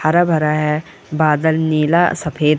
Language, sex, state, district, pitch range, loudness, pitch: Hindi, female, Uttarakhand, Uttarkashi, 150-160 Hz, -16 LUFS, 155 Hz